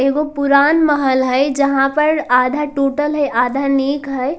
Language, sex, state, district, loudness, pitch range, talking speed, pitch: Hindi, female, Bihar, Darbhanga, -15 LUFS, 270-295 Hz, 165 wpm, 280 Hz